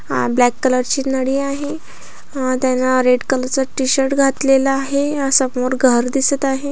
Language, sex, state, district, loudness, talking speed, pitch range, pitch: Marathi, female, Maharashtra, Pune, -16 LUFS, 160 wpm, 255-275 Hz, 265 Hz